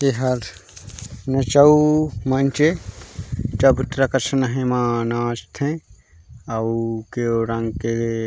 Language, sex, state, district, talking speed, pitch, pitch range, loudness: Chhattisgarhi, male, Chhattisgarh, Raigarh, 110 wpm, 120 Hz, 115-135 Hz, -20 LUFS